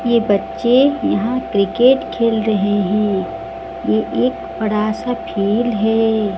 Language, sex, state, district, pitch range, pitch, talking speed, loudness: Hindi, female, Odisha, Sambalpur, 200-235 Hz, 215 Hz, 120 wpm, -17 LUFS